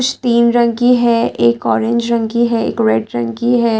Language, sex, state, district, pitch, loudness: Hindi, female, Delhi, New Delhi, 235 Hz, -14 LUFS